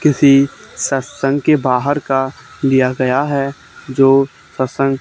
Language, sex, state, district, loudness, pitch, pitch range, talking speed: Hindi, male, Haryana, Charkhi Dadri, -15 LUFS, 135 Hz, 135-140 Hz, 120 wpm